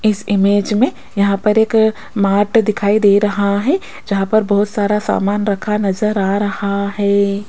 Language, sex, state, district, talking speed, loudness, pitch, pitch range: Hindi, female, Rajasthan, Jaipur, 170 wpm, -15 LUFS, 205 Hz, 200-215 Hz